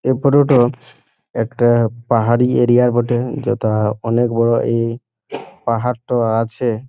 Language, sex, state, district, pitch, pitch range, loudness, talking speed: Bengali, male, West Bengal, Jhargram, 120 Hz, 115-125 Hz, -16 LUFS, 130 wpm